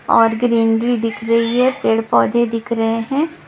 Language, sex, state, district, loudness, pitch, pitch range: Hindi, female, Punjab, Kapurthala, -16 LUFS, 230 Hz, 225-240 Hz